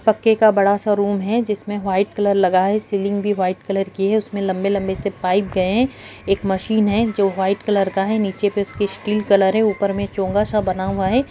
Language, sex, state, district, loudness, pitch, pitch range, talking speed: Hindi, female, Bihar, Jahanabad, -19 LUFS, 200 Hz, 195-210 Hz, 230 wpm